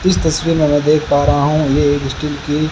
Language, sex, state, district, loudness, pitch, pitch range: Hindi, male, Rajasthan, Bikaner, -15 LUFS, 150 Hz, 145-155 Hz